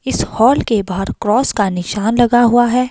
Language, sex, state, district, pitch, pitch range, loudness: Hindi, female, Himachal Pradesh, Shimla, 225 Hz, 200-240 Hz, -14 LUFS